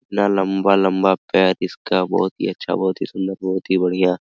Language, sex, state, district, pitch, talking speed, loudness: Hindi, male, Bihar, Araria, 95 Hz, 185 wpm, -19 LUFS